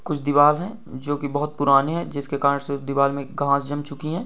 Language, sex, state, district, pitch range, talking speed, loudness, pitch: Hindi, male, Goa, North and South Goa, 140-150 Hz, 240 wpm, -22 LUFS, 145 Hz